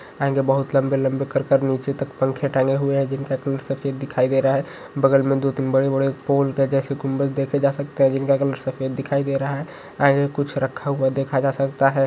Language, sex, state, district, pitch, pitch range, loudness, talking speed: Hindi, male, West Bengal, Kolkata, 135 Hz, 135-140 Hz, -21 LUFS, 230 wpm